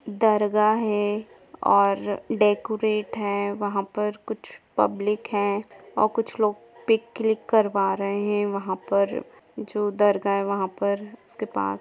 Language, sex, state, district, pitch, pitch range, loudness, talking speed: Hindi, female, Jharkhand, Jamtara, 205 Hz, 200-215 Hz, -24 LUFS, 135 wpm